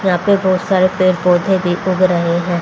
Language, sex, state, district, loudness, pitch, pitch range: Hindi, female, Haryana, Rohtak, -14 LUFS, 185 Hz, 175-185 Hz